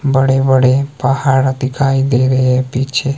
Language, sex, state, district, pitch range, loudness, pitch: Hindi, male, Himachal Pradesh, Shimla, 130-135 Hz, -13 LUFS, 135 Hz